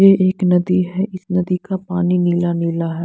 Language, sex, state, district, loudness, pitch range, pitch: Hindi, female, Punjab, Fazilka, -17 LUFS, 175-185 Hz, 180 Hz